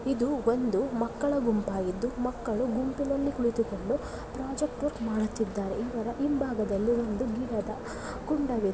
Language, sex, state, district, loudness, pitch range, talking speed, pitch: Kannada, female, Karnataka, Belgaum, -30 LUFS, 220-265 Hz, 110 wpm, 235 Hz